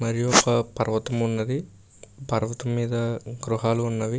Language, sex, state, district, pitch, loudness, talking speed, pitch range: Telugu, male, Karnataka, Bellary, 115 Hz, -24 LUFS, 115 wpm, 110-120 Hz